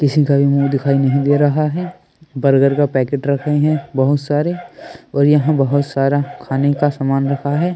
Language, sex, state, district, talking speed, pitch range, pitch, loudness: Hindi, male, Delhi, New Delhi, 200 wpm, 140-150 Hz, 140 Hz, -16 LUFS